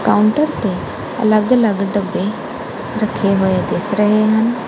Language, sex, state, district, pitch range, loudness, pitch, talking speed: Punjabi, female, Punjab, Kapurthala, 200-220 Hz, -16 LUFS, 215 Hz, 130 wpm